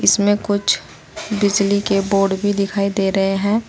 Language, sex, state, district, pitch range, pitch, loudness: Hindi, female, Uttar Pradesh, Saharanpur, 195-205 Hz, 200 Hz, -18 LUFS